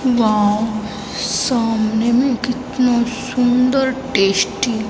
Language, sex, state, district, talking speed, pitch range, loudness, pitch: Hindi, female, Chhattisgarh, Raipur, 85 wpm, 215-255 Hz, -17 LUFS, 240 Hz